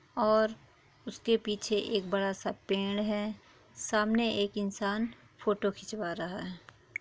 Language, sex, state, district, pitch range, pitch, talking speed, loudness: Hindi, female, Bihar, East Champaran, 195-215 Hz, 210 Hz, 135 wpm, -32 LUFS